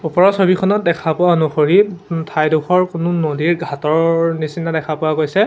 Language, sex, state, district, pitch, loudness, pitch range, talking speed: Assamese, male, Assam, Sonitpur, 165 Hz, -16 LUFS, 155-180 Hz, 140 wpm